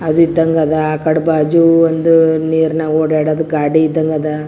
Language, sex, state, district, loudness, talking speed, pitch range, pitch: Kannada, female, Karnataka, Gulbarga, -13 LUFS, 160 wpm, 155-160 Hz, 160 Hz